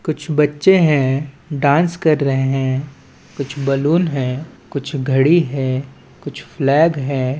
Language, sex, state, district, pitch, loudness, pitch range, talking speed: Chhattisgarhi, male, Chhattisgarh, Balrampur, 140 Hz, -17 LUFS, 135-155 Hz, 130 wpm